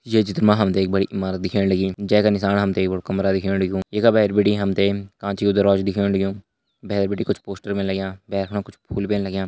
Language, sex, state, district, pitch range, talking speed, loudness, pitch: Hindi, male, Uttarakhand, Uttarkashi, 95-100 Hz, 265 wpm, -21 LUFS, 100 Hz